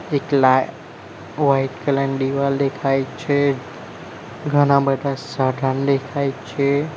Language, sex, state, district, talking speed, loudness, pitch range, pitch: Gujarati, male, Gujarat, Valsad, 110 wpm, -20 LUFS, 135-140 Hz, 140 Hz